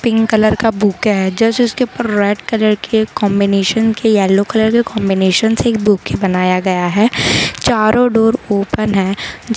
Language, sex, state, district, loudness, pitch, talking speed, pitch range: Hindi, female, Gujarat, Valsad, -14 LUFS, 215 Hz, 180 wpm, 200-225 Hz